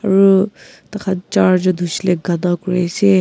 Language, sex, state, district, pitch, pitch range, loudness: Nagamese, female, Nagaland, Kohima, 185 Hz, 175-195 Hz, -16 LUFS